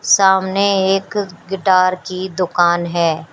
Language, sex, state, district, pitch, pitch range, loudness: Hindi, female, Uttar Pradesh, Shamli, 190 Hz, 175-195 Hz, -16 LUFS